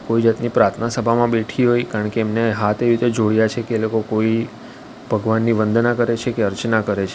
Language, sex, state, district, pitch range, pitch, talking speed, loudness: Gujarati, male, Gujarat, Valsad, 110-120 Hz, 115 Hz, 220 wpm, -18 LUFS